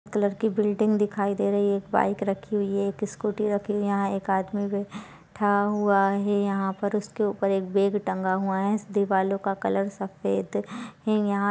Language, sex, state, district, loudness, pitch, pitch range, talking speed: Hindi, female, Chhattisgarh, Balrampur, -26 LUFS, 200 Hz, 195-205 Hz, 205 wpm